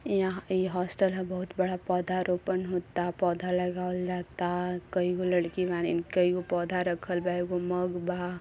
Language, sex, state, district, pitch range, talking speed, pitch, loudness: Bhojpuri, female, Uttar Pradesh, Gorakhpur, 180-185 Hz, 150 wpm, 180 Hz, -30 LUFS